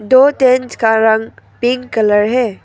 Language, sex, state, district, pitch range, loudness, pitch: Hindi, female, Arunachal Pradesh, Papum Pare, 220-255 Hz, -13 LUFS, 240 Hz